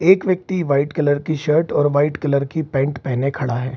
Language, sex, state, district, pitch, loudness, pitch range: Hindi, male, Bihar, Saran, 145 Hz, -19 LUFS, 140-160 Hz